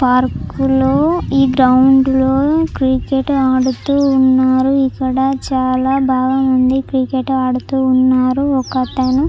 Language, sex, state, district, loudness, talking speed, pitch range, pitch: Telugu, female, Andhra Pradesh, Chittoor, -14 LUFS, 75 wpm, 260-270 Hz, 265 Hz